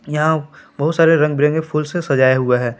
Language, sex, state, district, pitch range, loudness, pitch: Hindi, male, Jharkhand, Palamu, 135-160 Hz, -16 LUFS, 150 Hz